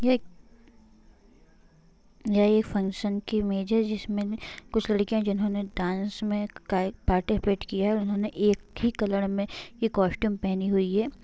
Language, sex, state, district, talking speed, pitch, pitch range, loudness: Hindi, female, Bihar, Sitamarhi, 150 wpm, 205 Hz, 195-215 Hz, -27 LUFS